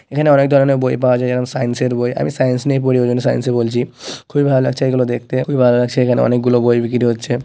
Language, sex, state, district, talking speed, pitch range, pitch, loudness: Bengali, male, West Bengal, North 24 Parganas, 250 wpm, 120-135 Hz, 125 Hz, -15 LUFS